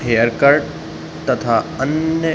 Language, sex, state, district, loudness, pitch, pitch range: Hindi, male, Uttar Pradesh, Budaun, -17 LUFS, 140 Hz, 120-160 Hz